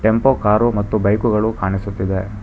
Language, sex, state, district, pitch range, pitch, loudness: Kannada, male, Karnataka, Bangalore, 100-110 Hz, 105 Hz, -17 LUFS